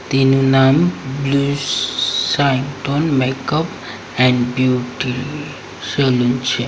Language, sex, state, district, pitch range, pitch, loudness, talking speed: Gujarati, male, Gujarat, Valsad, 125-140 Hz, 135 Hz, -17 LUFS, 90 wpm